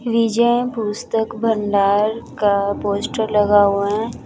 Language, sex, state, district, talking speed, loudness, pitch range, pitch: Hindi, female, Chandigarh, Chandigarh, 115 wpm, -18 LUFS, 205-230 Hz, 215 Hz